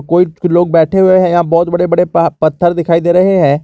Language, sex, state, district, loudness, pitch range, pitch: Hindi, male, Jharkhand, Garhwa, -11 LUFS, 165-180 Hz, 175 Hz